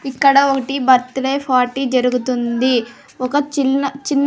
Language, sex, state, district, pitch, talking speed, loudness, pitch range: Telugu, female, Andhra Pradesh, Sri Satya Sai, 270 Hz, 110 wpm, -16 LUFS, 255-275 Hz